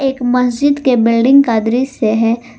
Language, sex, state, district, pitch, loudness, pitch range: Hindi, female, Jharkhand, Garhwa, 245 Hz, -13 LUFS, 230-265 Hz